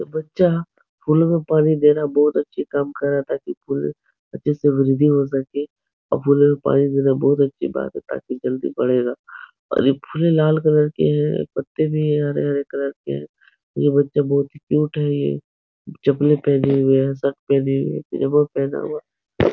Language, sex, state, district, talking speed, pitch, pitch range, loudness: Hindi, male, Uttar Pradesh, Etah, 190 wpm, 140 Hz, 135-150 Hz, -19 LUFS